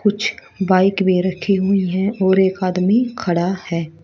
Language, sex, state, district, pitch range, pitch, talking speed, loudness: Hindi, female, Haryana, Rohtak, 180-195 Hz, 190 Hz, 165 wpm, -18 LUFS